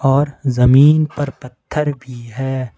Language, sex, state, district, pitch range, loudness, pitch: Hindi, male, Jharkhand, Ranchi, 125-145 Hz, -16 LUFS, 135 Hz